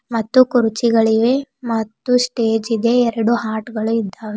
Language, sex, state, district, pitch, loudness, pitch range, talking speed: Kannada, female, Karnataka, Bidar, 230 Hz, -17 LUFS, 225-245 Hz, 135 wpm